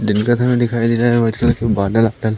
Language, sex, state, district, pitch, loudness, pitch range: Hindi, male, Madhya Pradesh, Umaria, 115 Hz, -16 LUFS, 110-120 Hz